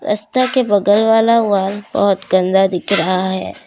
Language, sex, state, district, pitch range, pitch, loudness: Hindi, female, Assam, Kamrup Metropolitan, 190-225 Hz, 205 Hz, -15 LUFS